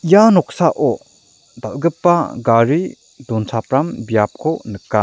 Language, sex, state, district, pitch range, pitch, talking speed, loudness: Garo, male, Meghalaya, South Garo Hills, 110-160 Hz, 125 Hz, 85 wpm, -16 LUFS